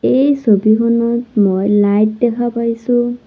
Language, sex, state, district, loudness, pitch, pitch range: Assamese, female, Assam, Sonitpur, -14 LUFS, 235 Hz, 210-240 Hz